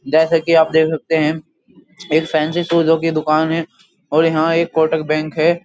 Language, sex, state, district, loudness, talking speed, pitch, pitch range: Hindi, male, Uttar Pradesh, Jyotiba Phule Nagar, -16 LUFS, 190 wpm, 160 Hz, 155-165 Hz